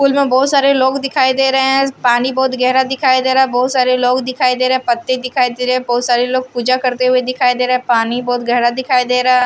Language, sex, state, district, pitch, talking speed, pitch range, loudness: Hindi, female, Bihar, Patna, 255 Hz, 285 wpm, 250-260 Hz, -14 LUFS